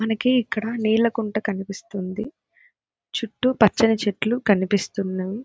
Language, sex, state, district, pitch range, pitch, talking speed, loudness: Telugu, female, Andhra Pradesh, Krishna, 200-230 Hz, 215 Hz, 110 wpm, -22 LUFS